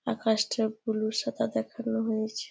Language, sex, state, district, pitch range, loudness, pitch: Bengali, female, West Bengal, Jalpaiguri, 215-225 Hz, -30 LUFS, 220 Hz